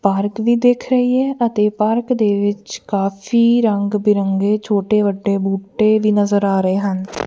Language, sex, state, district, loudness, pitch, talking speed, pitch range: Punjabi, female, Punjab, Kapurthala, -16 LUFS, 210 Hz, 165 wpm, 200-225 Hz